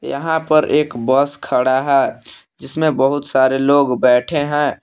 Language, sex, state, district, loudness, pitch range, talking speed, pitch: Hindi, male, Jharkhand, Palamu, -16 LUFS, 130-150 Hz, 150 wpm, 140 Hz